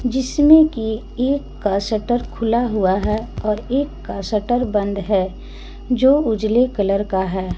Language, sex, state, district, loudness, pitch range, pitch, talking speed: Hindi, female, Jharkhand, Garhwa, -19 LUFS, 200-250 Hz, 220 Hz, 150 wpm